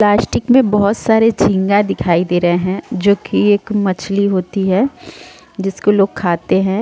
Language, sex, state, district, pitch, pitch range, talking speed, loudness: Hindi, female, Jharkhand, Sahebganj, 200 Hz, 190-215 Hz, 165 wpm, -15 LUFS